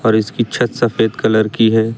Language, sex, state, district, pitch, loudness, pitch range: Hindi, male, Uttar Pradesh, Lucknow, 110 Hz, -15 LUFS, 110-115 Hz